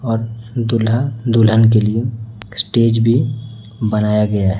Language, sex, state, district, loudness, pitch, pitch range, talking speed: Hindi, male, Chhattisgarh, Raipur, -16 LUFS, 115 Hz, 110-115 Hz, 130 wpm